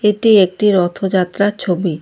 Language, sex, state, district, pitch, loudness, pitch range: Bengali, female, West Bengal, Cooch Behar, 195 Hz, -14 LUFS, 180-210 Hz